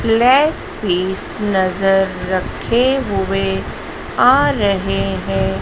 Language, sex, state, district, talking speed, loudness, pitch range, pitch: Hindi, female, Madhya Pradesh, Dhar, 85 wpm, -16 LUFS, 185-215 Hz, 195 Hz